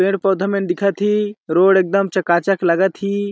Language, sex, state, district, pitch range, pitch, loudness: Awadhi, male, Chhattisgarh, Balrampur, 185-200 Hz, 195 Hz, -17 LUFS